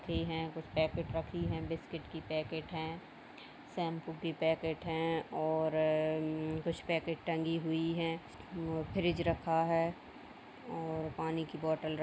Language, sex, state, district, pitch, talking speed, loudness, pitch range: Hindi, female, Uttar Pradesh, Jalaun, 160 Hz, 155 wpm, -36 LUFS, 160-165 Hz